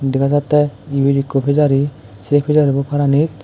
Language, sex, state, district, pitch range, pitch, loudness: Chakma, male, Tripura, West Tripura, 135-145 Hz, 140 Hz, -16 LUFS